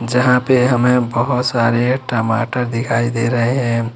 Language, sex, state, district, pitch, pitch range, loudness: Hindi, male, Jharkhand, Ranchi, 120 Hz, 115-125 Hz, -16 LUFS